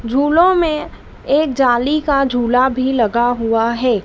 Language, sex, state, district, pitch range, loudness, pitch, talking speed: Hindi, female, Madhya Pradesh, Dhar, 240-295 Hz, -15 LUFS, 255 Hz, 150 wpm